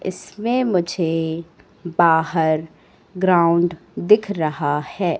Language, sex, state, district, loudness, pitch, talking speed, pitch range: Hindi, female, Madhya Pradesh, Katni, -19 LUFS, 170 Hz, 80 wpm, 160-185 Hz